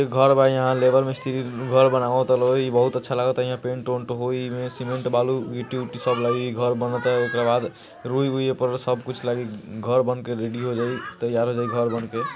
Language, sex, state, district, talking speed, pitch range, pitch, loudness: Bhojpuri, male, Bihar, East Champaran, 200 wpm, 120-130 Hz, 125 Hz, -23 LUFS